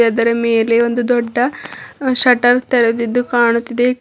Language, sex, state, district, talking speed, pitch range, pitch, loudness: Kannada, female, Karnataka, Bidar, 105 wpm, 235-245 Hz, 240 Hz, -14 LUFS